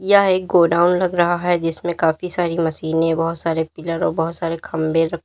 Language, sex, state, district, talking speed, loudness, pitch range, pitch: Hindi, female, Uttar Pradesh, Lalitpur, 205 wpm, -19 LUFS, 165-175 Hz, 170 Hz